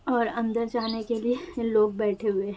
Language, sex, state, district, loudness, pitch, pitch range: Hindi, female, Uttar Pradesh, Gorakhpur, -27 LUFS, 230 Hz, 215-235 Hz